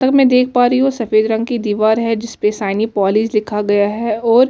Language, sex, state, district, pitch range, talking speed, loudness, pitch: Hindi, female, Delhi, New Delhi, 210-245 Hz, 255 wpm, -15 LUFS, 225 Hz